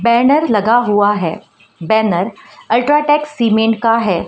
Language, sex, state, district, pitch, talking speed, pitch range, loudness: Hindi, female, Madhya Pradesh, Dhar, 225 Hz, 125 wpm, 210-240 Hz, -14 LUFS